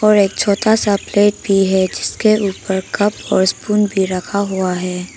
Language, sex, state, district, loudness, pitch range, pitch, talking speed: Hindi, female, Arunachal Pradesh, Papum Pare, -16 LUFS, 190-205 Hz, 200 Hz, 185 wpm